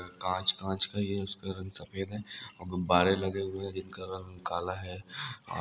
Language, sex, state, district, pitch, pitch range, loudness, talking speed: Hindi, male, Andhra Pradesh, Anantapur, 95 Hz, 90-95 Hz, -32 LUFS, 180 wpm